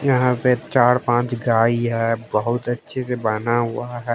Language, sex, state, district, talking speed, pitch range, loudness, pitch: Hindi, male, Haryana, Jhajjar, 175 wpm, 115-125 Hz, -20 LUFS, 120 Hz